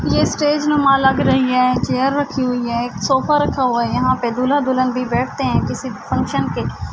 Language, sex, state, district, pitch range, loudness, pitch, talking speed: Urdu, female, Andhra Pradesh, Anantapur, 250-275 Hz, -17 LUFS, 260 Hz, 215 wpm